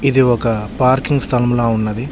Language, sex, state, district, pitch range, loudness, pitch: Telugu, male, Telangana, Hyderabad, 115-130 Hz, -16 LUFS, 120 Hz